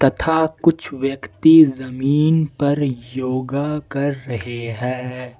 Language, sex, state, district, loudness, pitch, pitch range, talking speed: Hindi, male, Jharkhand, Ranchi, -19 LUFS, 135 Hz, 125-150 Hz, 100 wpm